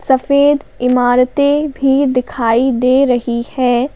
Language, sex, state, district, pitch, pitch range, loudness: Hindi, female, Madhya Pradesh, Bhopal, 255 Hz, 245-280 Hz, -13 LUFS